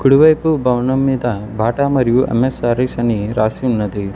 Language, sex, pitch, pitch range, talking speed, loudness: Telugu, male, 125 Hz, 110-135 Hz, 175 wpm, -16 LUFS